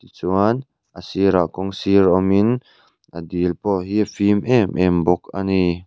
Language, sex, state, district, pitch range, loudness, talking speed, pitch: Mizo, male, Mizoram, Aizawl, 90-100 Hz, -19 LUFS, 165 wpm, 95 Hz